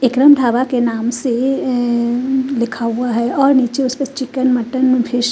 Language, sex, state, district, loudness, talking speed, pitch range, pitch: Hindi, female, Chandigarh, Chandigarh, -15 LUFS, 170 wpm, 240-265 Hz, 250 Hz